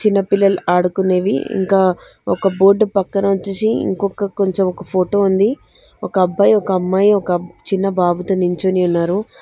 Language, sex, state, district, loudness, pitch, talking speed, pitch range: Telugu, female, Telangana, Hyderabad, -16 LUFS, 195 Hz, 140 wpm, 185-200 Hz